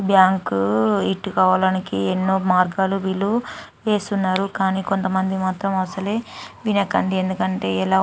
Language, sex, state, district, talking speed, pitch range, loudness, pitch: Telugu, female, Andhra Pradesh, Chittoor, 95 wpm, 185-195 Hz, -20 LUFS, 190 Hz